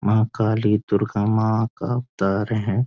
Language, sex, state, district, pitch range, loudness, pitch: Hindi, male, Uttarakhand, Uttarkashi, 105-110 Hz, -22 LUFS, 110 Hz